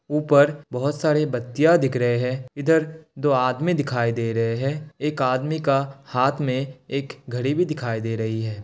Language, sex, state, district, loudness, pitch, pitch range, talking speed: Hindi, male, Bihar, Kishanganj, -22 LUFS, 135 Hz, 125-150 Hz, 180 wpm